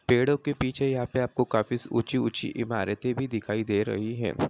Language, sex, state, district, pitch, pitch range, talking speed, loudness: Hindi, male, Bihar, Madhepura, 120 Hz, 110-130 Hz, 200 wpm, -28 LUFS